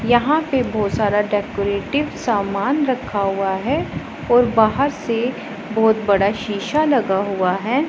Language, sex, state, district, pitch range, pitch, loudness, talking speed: Hindi, female, Punjab, Pathankot, 200-260 Hz, 220 Hz, -19 LUFS, 135 wpm